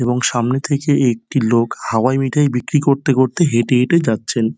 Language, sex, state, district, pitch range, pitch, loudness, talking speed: Bengali, male, West Bengal, Dakshin Dinajpur, 120-140 Hz, 130 Hz, -16 LUFS, 170 wpm